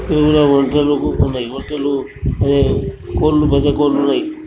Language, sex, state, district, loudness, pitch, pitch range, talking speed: Telugu, male, Telangana, Karimnagar, -15 LUFS, 145 Hz, 140-150 Hz, 110 wpm